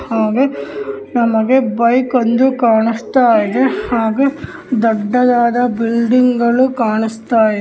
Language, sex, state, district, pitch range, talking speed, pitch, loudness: Kannada, female, Karnataka, Gulbarga, 225-250 Hz, 95 wpm, 235 Hz, -14 LUFS